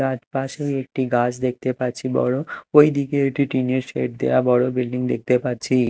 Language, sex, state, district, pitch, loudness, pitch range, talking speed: Bengali, male, Odisha, Malkangiri, 130 Hz, -21 LUFS, 125-135 Hz, 175 wpm